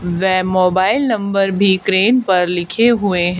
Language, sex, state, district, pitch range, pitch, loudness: Hindi, female, Haryana, Charkhi Dadri, 180-200 Hz, 190 Hz, -15 LUFS